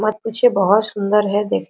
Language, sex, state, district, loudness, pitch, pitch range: Hindi, female, Jharkhand, Sahebganj, -17 LUFS, 210 Hz, 200-215 Hz